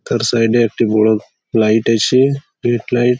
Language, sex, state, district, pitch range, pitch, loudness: Bengali, male, West Bengal, Malda, 110-120 Hz, 115 Hz, -15 LUFS